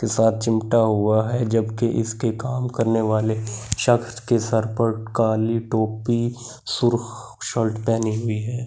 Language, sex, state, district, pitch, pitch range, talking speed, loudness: Hindi, male, Delhi, New Delhi, 115 Hz, 110-120 Hz, 150 wpm, -22 LUFS